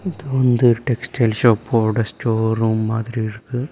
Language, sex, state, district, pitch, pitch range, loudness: Tamil, male, Tamil Nadu, Kanyakumari, 115 Hz, 110-125 Hz, -19 LUFS